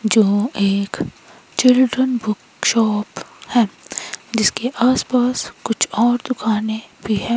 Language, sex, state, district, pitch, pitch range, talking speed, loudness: Hindi, female, Himachal Pradesh, Shimla, 225 Hz, 215-250 Hz, 115 wpm, -18 LUFS